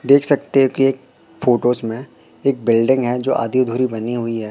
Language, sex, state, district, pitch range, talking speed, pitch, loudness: Hindi, male, Madhya Pradesh, Katni, 115-135 Hz, 215 wpm, 125 Hz, -17 LUFS